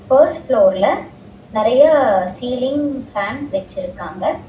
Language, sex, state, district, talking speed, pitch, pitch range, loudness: Tamil, female, Tamil Nadu, Chennai, 80 wpm, 270 Hz, 220-290 Hz, -17 LUFS